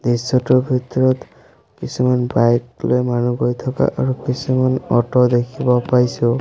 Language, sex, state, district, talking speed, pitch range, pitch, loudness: Assamese, male, Assam, Sonitpur, 120 wpm, 120-130 Hz, 125 Hz, -17 LUFS